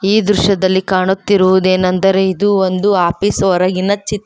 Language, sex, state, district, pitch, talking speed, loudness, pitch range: Kannada, female, Karnataka, Koppal, 190 Hz, 115 wpm, -13 LUFS, 185-200 Hz